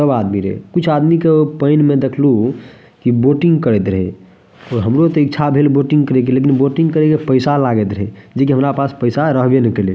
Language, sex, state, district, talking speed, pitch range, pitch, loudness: Maithili, male, Bihar, Madhepura, 200 wpm, 120-150 Hz, 140 Hz, -14 LUFS